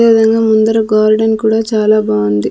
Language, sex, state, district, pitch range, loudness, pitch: Telugu, female, Andhra Pradesh, Sri Satya Sai, 215-225 Hz, -11 LUFS, 220 Hz